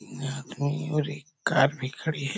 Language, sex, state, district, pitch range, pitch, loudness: Hindi, male, Chhattisgarh, Korba, 140-150 Hz, 145 Hz, -28 LUFS